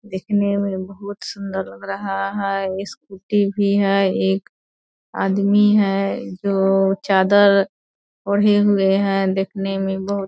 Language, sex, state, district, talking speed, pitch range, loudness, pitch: Hindi, female, Bihar, Purnia, 130 wpm, 195-200 Hz, -19 LUFS, 195 Hz